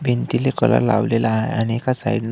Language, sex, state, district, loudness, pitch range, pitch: Marathi, male, Maharashtra, Solapur, -19 LUFS, 110-120 Hz, 115 Hz